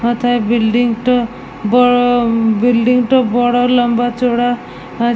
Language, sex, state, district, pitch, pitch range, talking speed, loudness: Bengali, female, West Bengal, Jalpaiguri, 245 Hz, 235-245 Hz, 115 wpm, -14 LUFS